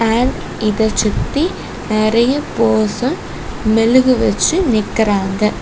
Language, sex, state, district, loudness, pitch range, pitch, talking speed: Tamil, female, Tamil Nadu, Kanyakumari, -15 LUFS, 215-255 Hz, 225 Hz, 75 wpm